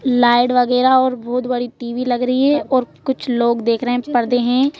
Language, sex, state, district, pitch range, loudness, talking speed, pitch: Hindi, female, Madhya Pradesh, Bhopal, 245-260 Hz, -17 LUFS, 215 wpm, 250 Hz